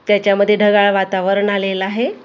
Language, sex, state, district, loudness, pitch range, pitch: Marathi, female, Maharashtra, Gondia, -15 LUFS, 195-205 Hz, 200 Hz